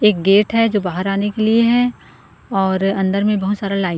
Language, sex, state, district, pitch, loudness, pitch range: Hindi, female, Chhattisgarh, Korba, 200 Hz, -17 LUFS, 195-215 Hz